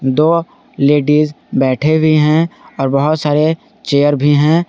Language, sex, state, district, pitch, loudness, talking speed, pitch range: Hindi, male, Jharkhand, Garhwa, 150 Hz, -13 LUFS, 140 wpm, 145-160 Hz